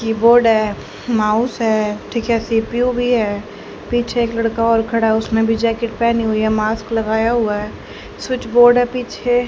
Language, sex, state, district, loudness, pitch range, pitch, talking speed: Hindi, female, Haryana, Charkhi Dadri, -17 LUFS, 220-240 Hz, 230 Hz, 175 wpm